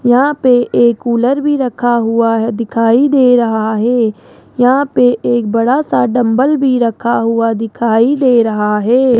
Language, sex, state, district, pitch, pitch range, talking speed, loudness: Hindi, female, Rajasthan, Jaipur, 240 Hz, 230-255 Hz, 165 wpm, -12 LUFS